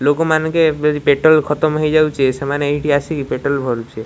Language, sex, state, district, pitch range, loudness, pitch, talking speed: Odia, male, Odisha, Malkangiri, 140-155 Hz, -16 LUFS, 145 Hz, 160 wpm